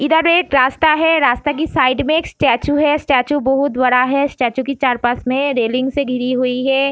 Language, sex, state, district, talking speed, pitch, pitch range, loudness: Hindi, female, Bihar, Darbhanga, 250 wpm, 275 Hz, 255-295 Hz, -15 LUFS